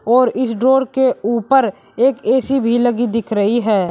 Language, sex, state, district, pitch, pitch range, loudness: Hindi, male, Uttar Pradesh, Shamli, 240 Hz, 230-260 Hz, -16 LUFS